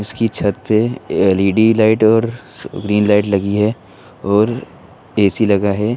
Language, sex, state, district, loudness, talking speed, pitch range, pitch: Hindi, male, Uttar Pradesh, Muzaffarnagar, -15 LUFS, 140 wpm, 100-115 Hz, 105 Hz